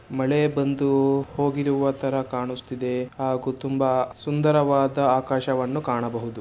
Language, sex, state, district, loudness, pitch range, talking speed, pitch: Kannada, male, Karnataka, Shimoga, -24 LUFS, 130-140 Hz, 95 wpm, 135 Hz